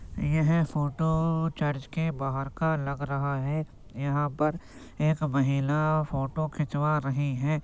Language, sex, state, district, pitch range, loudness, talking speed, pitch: Hindi, male, Uttar Pradesh, Jyotiba Phule Nagar, 140-155 Hz, -28 LUFS, 135 wpm, 150 Hz